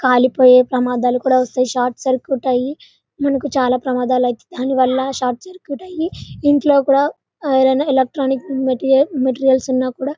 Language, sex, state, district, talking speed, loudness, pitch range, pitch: Telugu, female, Telangana, Karimnagar, 140 wpm, -16 LUFS, 255-275 Hz, 260 Hz